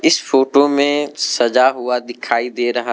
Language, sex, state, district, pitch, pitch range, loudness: Hindi, male, Arunachal Pradesh, Lower Dibang Valley, 130 Hz, 120-140 Hz, -16 LUFS